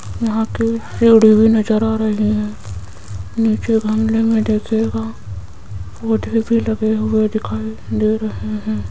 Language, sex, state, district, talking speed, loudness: Hindi, female, Rajasthan, Jaipur, 135 wpm, -17 LUFS